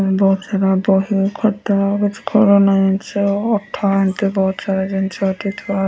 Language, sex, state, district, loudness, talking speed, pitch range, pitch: Odia, female, Odisha, Nuapada, -17 LUFS, 165 wpm, 195-200 Hz, 195 Hz